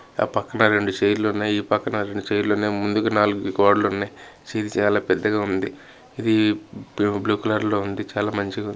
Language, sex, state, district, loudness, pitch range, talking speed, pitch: Telugu, male, Andhra Pradesh, Chittoor, -22 LUFS, 100-105 Hz, 185 wpm, 105 Hz